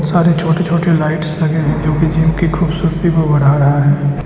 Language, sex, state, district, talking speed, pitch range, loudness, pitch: Hindi, male, Arunachal Pradesh, Lower Dibang Valley, 210 wpm, 150-165 Hz, -13 LUFS, 160 Hz